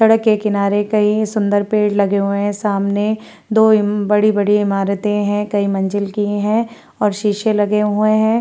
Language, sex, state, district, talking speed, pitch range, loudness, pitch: Hindi, female, Uttar Pradesh, Varanasi, 165 wpm, 205-215 Hz, -16 LUFS, 210 Hz